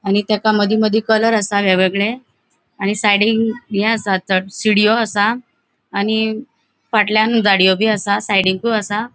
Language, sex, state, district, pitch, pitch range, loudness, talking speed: Konkani, female, Goa, North and South Goa, 215 Hz, 200-220 Hz, -16 LUFS, 140 wpm